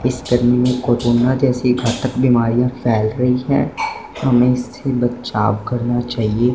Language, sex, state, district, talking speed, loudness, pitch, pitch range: Hindi, male, Punjab, Fazilka, 135 wpm, -17 LUFS, 125 Hz, 120-125 Hz